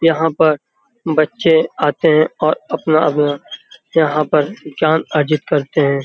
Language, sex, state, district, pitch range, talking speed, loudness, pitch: Hindi, male, Uttar Pradesh, Hamirpur, 150-160 Hz, 130 wpm, -16 LUFS, 155 Hz